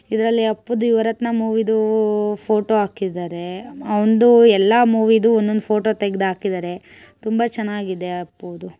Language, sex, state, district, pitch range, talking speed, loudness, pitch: Kannada, male, Karnataka, Chamarajanagar, 195-225 Hz, 115 wpm, -18 LUFS, 215 Hz